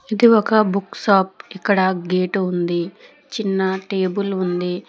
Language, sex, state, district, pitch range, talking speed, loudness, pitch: Telugu, female, Telangana, Hyderabad, 185-205 Hz, 125 wpm, -19 LUFS, 190 Hz